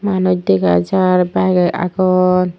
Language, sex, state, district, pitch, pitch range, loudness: Chakma, female, Tripura, Unakoti, 180 Hz, 175-185 Hz, -14 LUFS